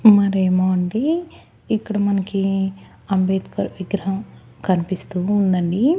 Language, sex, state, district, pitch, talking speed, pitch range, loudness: Telugu, female, Andhra Pradesh, Annamaya, 195 Hz, 80 wpm, 185-205 Hz, -20 LUFS